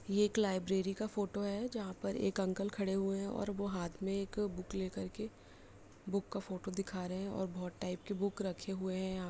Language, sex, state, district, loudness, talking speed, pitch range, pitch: Hindi, female, Bihar, Jamui, -39 LUFS, 240 wpm, 185-200 Hz, 195 Hz